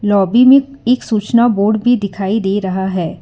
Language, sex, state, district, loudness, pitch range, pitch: Hindi, female, Karnataka, Bangalore, -13 LUFS, 195-245 Hz, 210 Hz